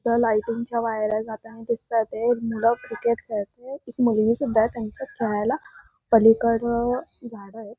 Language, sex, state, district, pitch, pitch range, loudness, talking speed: Marathi, female, Maharashtra, Dhule, 230 Hz, 220-235 Hz, -23 LUFS, 130 wpm